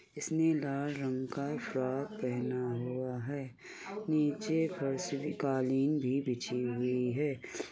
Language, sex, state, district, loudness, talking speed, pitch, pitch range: Hindi, male, Uttar Pradesh, Muzaffarnagar, -34 LUFS, 130 wpm, 135 Hz, 125-145 Hz